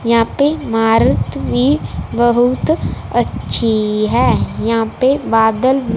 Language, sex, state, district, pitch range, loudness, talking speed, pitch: Hindi, female, Punjab, Fazilka, 225-255 Hz, -15 LUFS, 100 wpm, 235 Hz